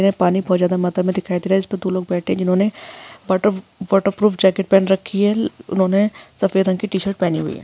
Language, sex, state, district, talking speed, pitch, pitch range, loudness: Hindi, female, Maharashtra, Aurangabad, 230 wpm, 190 Hz, 185-200 Hz, -18 LUFS